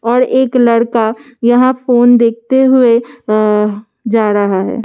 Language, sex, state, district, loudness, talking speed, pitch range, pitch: Hindi, female, Delhi, New Delhi, -11 LUFS, 135 wpm, 220-250 Hz, 235 Hz